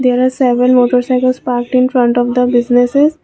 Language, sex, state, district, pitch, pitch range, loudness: English, female, Assam, Kamrup Metropolitan, 250 Hz, 245-255 Hz, -12 LUFS